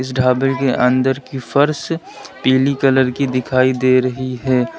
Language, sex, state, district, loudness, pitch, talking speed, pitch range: Hindi, male, Uttar Pradesh, Lalitpur, -16 LUFS, 130 Hz, 165 wpm, 130-135 Hz